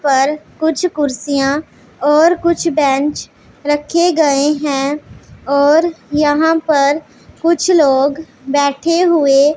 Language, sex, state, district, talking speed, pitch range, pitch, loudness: Hindi, female, Punjab, Pathankot, 100 wpm, 280-320 Hz, 295 Hz, -14 LUFS